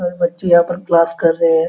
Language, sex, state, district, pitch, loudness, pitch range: Hindi, male, Bihar, Araria, 170 Hz, -15 LUFS, 165-175 Hz